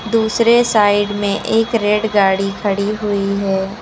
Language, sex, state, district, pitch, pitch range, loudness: Hindi, female, Uttar Pradesh, Lucknow, 205 Hz, 200-225 Hz, -15 LUFS